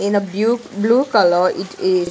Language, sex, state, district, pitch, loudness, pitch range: English, female, Punjab, Kapurthala, 205 Hz, -17 LUFS, 185-235 Hz